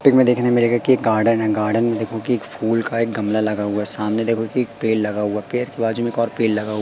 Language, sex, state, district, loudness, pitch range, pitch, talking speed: Hindi, male, Madhya Pradesh, Katni, -19 LUFS, 105-120 Hz, 115 Hz, 310 wpm